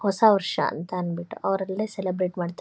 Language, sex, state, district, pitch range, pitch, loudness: Kannada, female, Karnataka, Shimoga, 180-200 Hz, 190 Hz, -25 LUFS